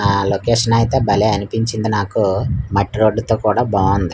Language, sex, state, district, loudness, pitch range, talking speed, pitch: Telugu, male, Andhra Pradesh, Manyam, -16 LUFS, 100-115 Hz, 160 wpm, 110 Hz